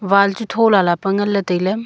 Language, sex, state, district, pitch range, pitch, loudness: Wancho, female, Arunachal Pradesh, Longding, 195-210 Hz, 200 Hz, -16 LUFS